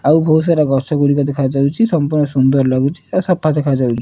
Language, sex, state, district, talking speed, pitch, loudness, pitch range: Odia, male, Odisha, Nuapada, 195 wpm, 145 Hz, -15 LUFS, 135-155 Hz